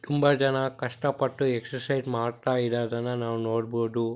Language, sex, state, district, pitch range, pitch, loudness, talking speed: Kannada, male, Karnataka, Bellary, 115-135 Hz, 125 Hz, -27 LUFS, 130 wpm